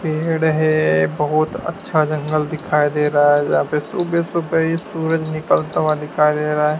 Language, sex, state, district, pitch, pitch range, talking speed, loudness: Hindi, male, Madhya Pradesh, Dhar, 155 Hz, 150-160 Hz, 185 wpm, -18 LUFS